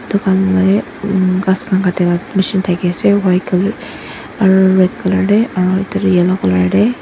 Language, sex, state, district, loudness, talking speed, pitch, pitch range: Nagamese, female, Nagaland, Dimapur, -13 LUFS, 190 wpm, 190 Hz, 185-200 Hz